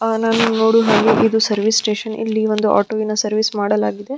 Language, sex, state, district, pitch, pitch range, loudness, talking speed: Kannada, female, Karnataka, Dharwad, 220 Hz, 215-225 Hz, -16 LUFS, 200 wpm